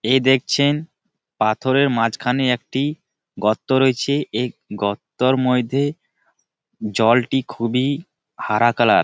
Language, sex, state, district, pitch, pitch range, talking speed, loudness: Bengali, male, West Bengal, Malda, 130 Hz, 115-140 Hz, 105 wpm, -19 LUFS